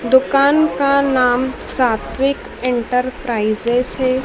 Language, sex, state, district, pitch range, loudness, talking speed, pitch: Hindi, female, Madhya Pradesh, Dhar, 245-275 Hz, -17 LUFS, 85 wpm, 255 Hz